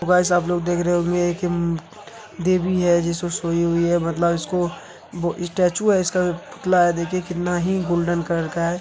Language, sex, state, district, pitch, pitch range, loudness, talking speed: Hindi, male, Bihar, Begusarai, 175 Hz, 170-180 Hz, -21 LUFS, 175 wpm